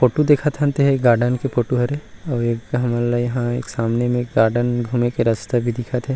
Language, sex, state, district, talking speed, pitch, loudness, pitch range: Chhattisgarhi, male, Chhattisgarh, Rajnandgaon, 215 wpm, 120 Hz, -19 LUFS, 120-125 Hz